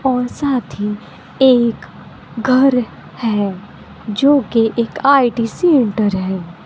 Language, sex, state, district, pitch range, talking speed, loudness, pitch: Hindi, female, Bihar, Kishanganj, 210-265 Hz, 110 wpm, -16 LUFS, 235 Hz